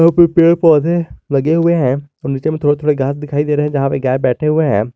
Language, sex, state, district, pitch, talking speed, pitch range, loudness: Hindi, male, Jharkhand, Garhwa, 150 Hz, 280 wpm, 135-160 Hz, -14 LUFS